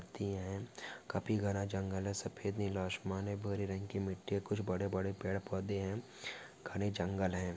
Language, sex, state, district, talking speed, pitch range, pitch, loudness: Hindi, male, Maharashtra, Dhule, 190 wpm, 95-100 Hz, 100 Hz, -39 LUFS